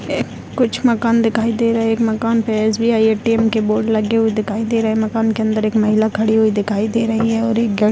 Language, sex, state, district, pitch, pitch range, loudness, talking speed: Hindi, female, Bihar, Darbhanga, 225 Hz, 220-230 Hz, -16 LUFS, 255 wpm